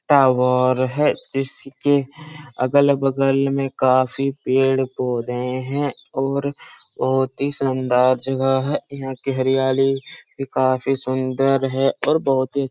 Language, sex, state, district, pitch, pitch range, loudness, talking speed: Hindi, male, Uttar Pradesh, Jalaun, 135 Hz, 130-135 Hz, -20 LUFS, 125 wpm